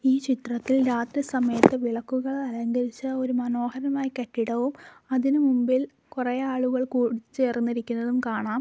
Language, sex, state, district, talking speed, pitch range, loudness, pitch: Malayalam, female, Kerala, Kollam, 110 wpm, 240-265 Hz, -26 LUFS, 255 Hz